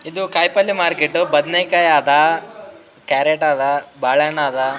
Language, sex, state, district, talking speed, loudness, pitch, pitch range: Kannada, male, Karnataka, Raichur, 115 wpm, -16 LUFS, 160 Hz, 145-175 Hz